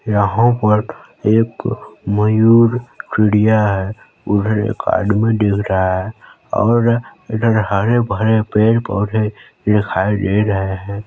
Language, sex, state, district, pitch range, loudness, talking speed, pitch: Hindi, male, Chhattisgarh, Balrampur, 100-115 Hz, -16 LUFS, 120 wpm, 105 Hz